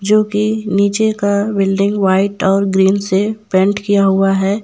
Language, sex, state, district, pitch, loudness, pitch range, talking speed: Hindi, female, Jharkhand, Ranchi, 200 Hz, -14 LUFS, 195-210 Hz, 155 wpm